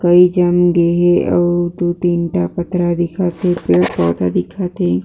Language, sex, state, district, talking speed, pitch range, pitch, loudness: Chhattisgarhi, female, Chhattisgarh, Jashpur, 180 wpm, 170-175 Hz, 175 Hz, -15 LUFS